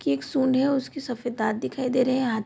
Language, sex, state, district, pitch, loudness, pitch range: Hindi, female, Bihar, Vaishali, 255 Hz, -25 LUFS, 225-265 Hz